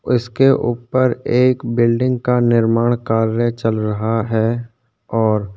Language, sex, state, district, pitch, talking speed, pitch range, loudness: Hindi, male, Chhattisgarh, Korba, 115 Hz, 130 wpm, 115-120 Hz, -17 LUFS